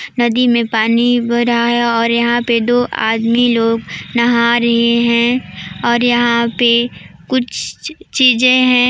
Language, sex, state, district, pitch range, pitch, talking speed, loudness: Hindi, female, Chhattisgarh, Balrampur, 235-245 Hz, 235 Hz, 135 wpm, -13 LUFS